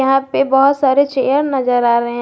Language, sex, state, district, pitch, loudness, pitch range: Hindi, female, Jharkhand, Garhwa, 270 Hz, -14 LUFS, 250-275 Hz